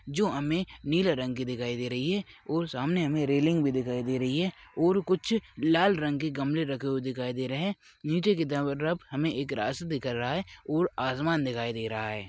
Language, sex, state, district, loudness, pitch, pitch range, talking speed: Hindi, male, Chhattisgarh, Rajnandgaon, -29 LUFS, 145 Hz, 130-170 Hz, 225 wpm